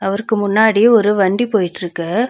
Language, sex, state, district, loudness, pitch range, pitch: Tamil, female, Tamil Nadu, Nilgiris, -15 LUFS, 195-225 Hz, 205 Hz